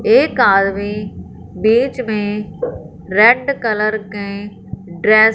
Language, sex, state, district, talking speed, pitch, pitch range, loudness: Hindi, female, Punjab, Fazilka, 100 wpm, 210 Hz, 200-230 Hz, -15 LUFS